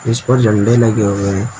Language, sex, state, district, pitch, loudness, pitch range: Hindi, male, Uttar Pradesh, Shamli, 110 Hz, -13 LUFS, 100-120 Hz